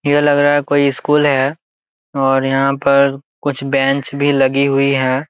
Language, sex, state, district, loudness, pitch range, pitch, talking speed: Hindi, male, Jharkhand, Jamtara, -15 LUFS, 135-145 Hz, 140 Hz, 170 wpm